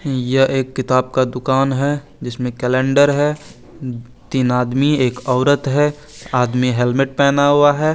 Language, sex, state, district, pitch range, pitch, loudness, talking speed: Hindi, male, Chandigarh, Chandigarh, 125-145 Hz, 135 Hz, -16 LUFS, 145 wpm